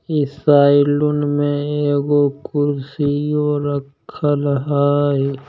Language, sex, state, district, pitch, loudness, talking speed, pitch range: Maithili, male, Bihar, Samastipur, 145 Hz, -17 LUFS, 75 wpm, 140-145 Hz